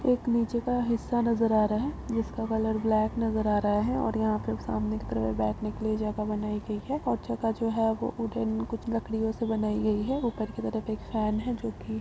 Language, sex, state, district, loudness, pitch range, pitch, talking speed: Hindi, female, Uttar Pradesh, Budaun, -29 LUFS, 210-230 Hz, 220 Hz, 235 wpm